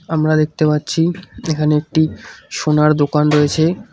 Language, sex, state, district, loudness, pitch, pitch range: Bengali, male, West Bengal, Cooch Behar, -16 LUFS, 155 Hz, 150-165 Hz